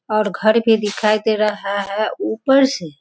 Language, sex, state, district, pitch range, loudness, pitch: Hindi, female, Bihar, Sitamarhi, 200-220 Hz, -17 LUFS, 215 Hz